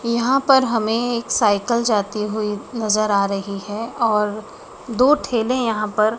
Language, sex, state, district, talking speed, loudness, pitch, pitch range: Hindi, female, Madhya Pradesh, Dhar, 155 wpm, -19 LUFS, 220 Hz, 210-235 Hz